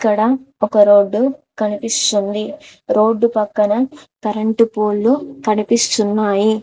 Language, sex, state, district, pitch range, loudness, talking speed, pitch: Telugu, female, Telangana, Mahabubabad, 210-245 Hz, -16 LUFS, 80 wpm, 215 Hz